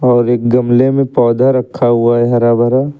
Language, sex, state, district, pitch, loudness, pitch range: Hindi, male, Uttar Pradesh, Lucknow, 120 Hz, -12 LUFS, 120-130 Hz